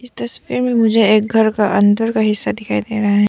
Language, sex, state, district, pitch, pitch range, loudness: Hindi, female, Arunachal Pradesh, Papum Pare, 215 Hz, 210-225 Hz, -15 LUFS